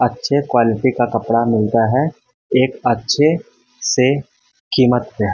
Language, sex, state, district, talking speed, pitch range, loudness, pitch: Hindi, male, Bihar, Patna, 125 wpm, 115-135 Hz, -17 LUFS, 125 Hz